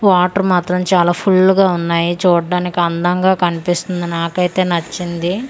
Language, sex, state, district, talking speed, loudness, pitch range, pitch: Telugu, female, Andhra Pradesh, Manyam, 120 wpm, -15 LUFS, 175-185 Hz, 180 Hz